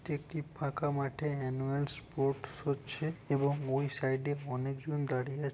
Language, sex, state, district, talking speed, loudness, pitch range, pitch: Bengali, male, West Bengal, Purulia, 150 wpm, -35 LUFS, 135-145 Hz, 140 Hz